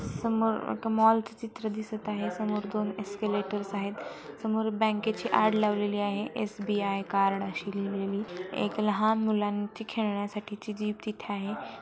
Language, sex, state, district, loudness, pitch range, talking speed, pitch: Marathi, female, Maharashtra, Solapur, -30 LUFS, 205-220 Hz, 135 wpm, 210 Hz